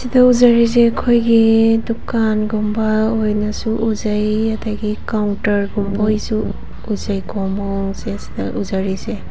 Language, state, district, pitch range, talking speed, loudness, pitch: Manipuri, Manipur, Imphal West, 210-225 Hz, 90 wpm, -17 LUFS, 215 Hz